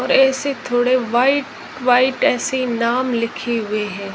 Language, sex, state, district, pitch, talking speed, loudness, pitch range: Hindi, female, Rajasthan, Jaisalmer, 245 Hz, 145 wpm, -18 LUFS, 235-260 Hz